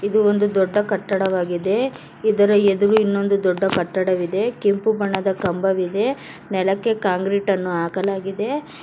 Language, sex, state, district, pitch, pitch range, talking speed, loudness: Kannada, female, Karnataka, Bangalore, 195 Hz, 190-205 Hz, 110 wpm, -20 LUFS